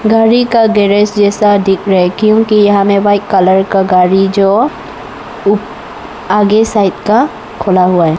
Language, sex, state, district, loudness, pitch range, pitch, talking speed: Hindi, female, Arunachal Pradesh, Lower Dibang Valley, -10 LUFS, 195-215 Hz, 205 Hz, 160 wpm